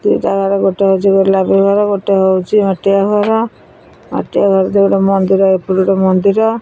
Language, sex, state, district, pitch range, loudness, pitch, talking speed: Odia, female, Odisha, Khordha, 190-200 Hz, -12 LUFS, 195 Hz, 165 wpm